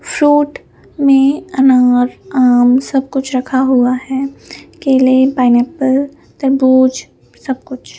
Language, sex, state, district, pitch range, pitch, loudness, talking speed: Hindi, female, Punjab, Fazilka, 255-275 Hz, 265 Hz, -12 LUFS, 115 wpm